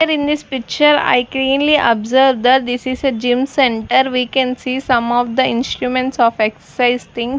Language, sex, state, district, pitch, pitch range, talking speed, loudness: English, female, Punjab, Fazilka, 255 Hz, 245-265 Hz, 185 wpm, -15 LUFS